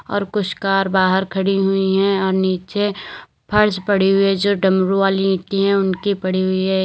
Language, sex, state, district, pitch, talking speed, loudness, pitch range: Hindi, female, Uttar Pradesh, Lalitpur, 195 Hz, 195 wpm, -17 LUFS, 190-200 Hz